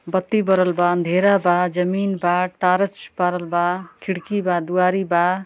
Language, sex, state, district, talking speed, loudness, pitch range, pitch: Bhojpuri, female, Uttar Pradesh, Ghazipur, 155 wpm, -20 LUFS, 175-190 Hz, 180 Hz